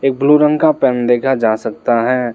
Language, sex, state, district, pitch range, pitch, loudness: Hindi, male, Arunachal Pradesh, Lower Dibang Valley, 120-140 Hz, 130 Hz, -14 LUFS